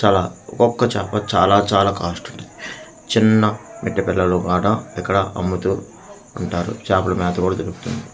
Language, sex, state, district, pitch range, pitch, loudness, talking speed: Telugu, male, Andhra Pradesh, Manyam, 90-105 Hz, 95 Hz, -19 LUFS, 140 wpm